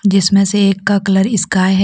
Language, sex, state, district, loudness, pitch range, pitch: Hindi, female, Jharkhand, Deoghar, -13 LUFS, 195-200 Hz, 195 Hz